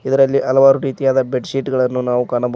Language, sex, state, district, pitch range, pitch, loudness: Kannada, male, Karnataka, Koppal, 125-135 Hz, 135 Hz, -16 LUFS